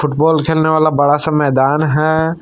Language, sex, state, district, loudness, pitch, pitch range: Hindi, male, Jharkhand, Palamu, -13 LUFS, 155 Hz, 150-160 Hz